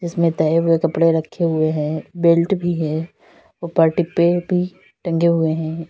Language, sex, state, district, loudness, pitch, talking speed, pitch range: Hindi, female, Uttar Pradesh, Lalitpur, -18 LUFS, 165 Hz, 165 wpm, 160-170 Hz